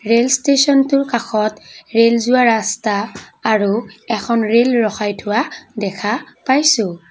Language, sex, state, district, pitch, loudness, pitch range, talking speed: Assamese, female, Assam, Kamrup Metropolitan, 230 Hz, -16 LUFS, 215-255 Hz, 110 wpm